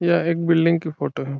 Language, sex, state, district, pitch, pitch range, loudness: Hindi, male, Bihar, Saran, 170 Hz, 160-170 Hz, -20 LUFS